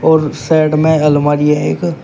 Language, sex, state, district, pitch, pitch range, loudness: Hindi, male, Uttar Pradesh, Shamli, 155 Hz, 150-160 Hz, -12 LUFS